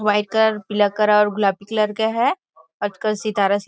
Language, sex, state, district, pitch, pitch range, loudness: Hindi, female, Chhattisgarh, Rajnandgaon, 210 Hz, 205-220 Hz, -19 LUFS